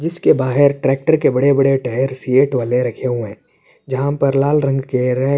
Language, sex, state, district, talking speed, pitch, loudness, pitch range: Urdu, male, Uttar Pradesh, Budaun, 225 wpm, 135 Hz, -16 LUFS, 125-140 Hz